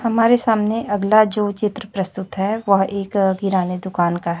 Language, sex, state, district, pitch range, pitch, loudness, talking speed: Hindi, female, Chhattisgarh, Raipur, 190-215 Hz, 200 Hz, -19 LUFS, 175 wpm